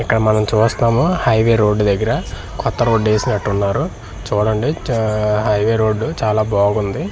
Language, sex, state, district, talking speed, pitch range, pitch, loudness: Telugu, male, Andhra Pradesh, Manyam, 145 wpm, 105-115 Hz, 110 Hz, -16 LUFS